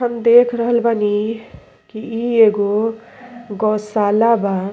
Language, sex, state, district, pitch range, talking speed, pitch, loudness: Bhojpuri, female, Uttar Pradesh, Deoria, 210-235 Hz, 115 wpm, 225 Hz, -16 LUFS